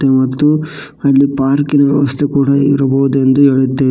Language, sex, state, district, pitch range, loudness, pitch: Kannada, male, Karnataka, Koppal, 135-145 Hz, -12 LUFS, 140 Hz